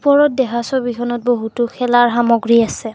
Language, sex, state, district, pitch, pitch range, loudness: Assamese, female, Assam, Kamrup Metropolitan, 240 Hz, 235-250 Hz, -16 LUFS